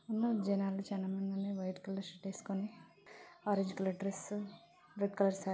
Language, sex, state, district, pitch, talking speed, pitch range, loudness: Telugu, female, Telangana, Nalgonda, 195 Hz, 160 wpm, 190-200 Hz, -38 LUFS